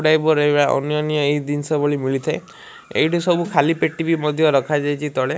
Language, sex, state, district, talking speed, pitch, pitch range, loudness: Odia, male, Odisha, Malkangiri, 180 wpm, 150 Hz, 145-155 Hz, -19 LUFS